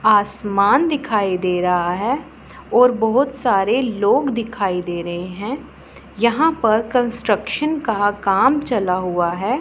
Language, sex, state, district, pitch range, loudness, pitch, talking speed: Hindi, female, Punjab, Pathankot, 195-260 Hz, -18 LUFS, 220 Hz, 130 wpm